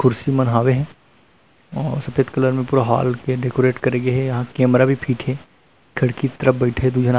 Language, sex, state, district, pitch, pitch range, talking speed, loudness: Chhattisgarhi, male, Chhattisgarh, Rajnandgaon, 130 Hz, 125-135 Hz, 215 wpm, -19 LUFS